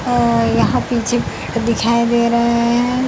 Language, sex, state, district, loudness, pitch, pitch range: Hindi, female, Bihar, Bhagalpur, -16 LUFS, 235 Hz, 235-240 Hz